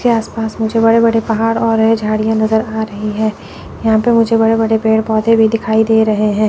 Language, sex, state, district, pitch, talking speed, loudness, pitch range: Hindi, female, Chandigarh, Chandigarh, 220 Hz, 230 wpm, -13 LUFS, 220-225 Hz